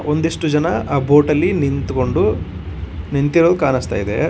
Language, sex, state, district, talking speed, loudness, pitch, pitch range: Kannada, male, Karnataka, Koppal, 125 wpm, -17 LUFS, 140 Hz, 95-150 Hz